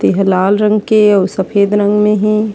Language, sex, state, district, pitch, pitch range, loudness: Chhattisgarhi, female, Chhattisgarh, Sarguja, 205 Hz, 195-210 Hz, -12 LUFS